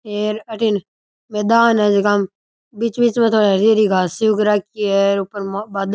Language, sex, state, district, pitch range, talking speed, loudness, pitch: Rajasthani, male, Rajasthan, Churu, 200-220 Hz, 190 wpm, -17 LUFS, 210 Hz